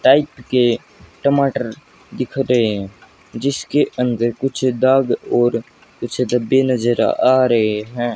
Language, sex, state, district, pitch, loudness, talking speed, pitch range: Hindi, male, Haryana, Jhajjar, 125 Hz, -18 LUFS, 125 wpm, 120-135 Hz